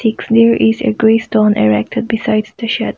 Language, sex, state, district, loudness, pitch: English, female, Nagaland, Kohima, -13 LUFS, 215 Hz